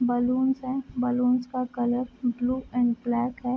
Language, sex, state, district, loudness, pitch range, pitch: Hindi, female, Bihar, East Champaran, -26 LUFS, 245-255 Hz, 250 Hz